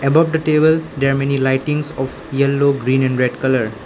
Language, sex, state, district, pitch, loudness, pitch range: English, male, Arunachal Pradesh, Lower Dibang Valley, 135 Hz, -17 LUFS, 130-150 Hz